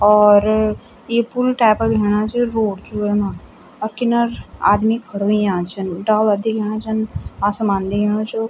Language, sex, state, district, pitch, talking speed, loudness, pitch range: Garhwali, female, Uttarakhand, Tehri Garhwal, 215 Hz, 155 wpm, -18 LUFS, 205-225 Hz